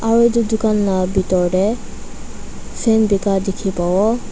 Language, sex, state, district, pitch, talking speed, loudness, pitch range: Nagamese, female, Nagaland, Dimapur, 200 Hz, 140 wpm, -17 LUFS, 190-225 Hz